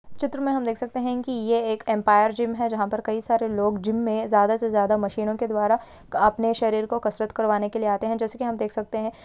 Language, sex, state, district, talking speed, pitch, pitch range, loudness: Hindi, female, Maharashtra, Sindhudurg, 260 wpm, 220 Hz, 215-230 Hz, -24 LUFS